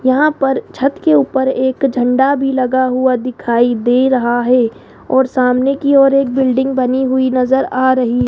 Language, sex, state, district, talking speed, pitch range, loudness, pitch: Hindi, female, Rajasthan, Jaipur, 190 wpm, 250-270 Hz, -14 LUFS, 260 Hz